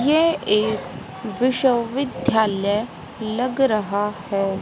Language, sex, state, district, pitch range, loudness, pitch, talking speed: Hindi, female, Haryana, Rohtak, 205-260 Hz, -21 LUFS, 220 Hz, 80 wpm